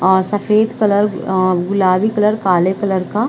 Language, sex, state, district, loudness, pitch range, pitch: Hindi, female, Chhattisgarh, Bilaspur, -15 LUFS, 185-210 Hz, 200 Hz